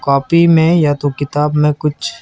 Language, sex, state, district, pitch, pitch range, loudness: Hindi, male, Chhattisgarh, Raipur, 150 Hz, 145-160 Hz, -13 LUFS